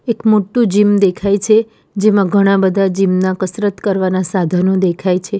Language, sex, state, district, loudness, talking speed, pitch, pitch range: Gujarati, female, Gujarat, Valsad, -14 LUFS, 165 wpm, 195 Hz, 185-205 Hz